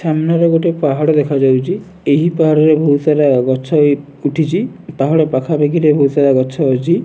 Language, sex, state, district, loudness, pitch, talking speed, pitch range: Odia, male, Odisha, Nuapada, -13 LUFS, 150 Hz, 155 wpm, 140-165 Hz